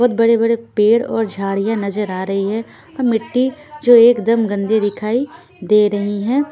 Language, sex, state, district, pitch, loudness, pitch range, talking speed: Hindi, female, Punjab, Fazilka, 225 Hz, -16 LUFS, 205-240 Hz, 175 wpm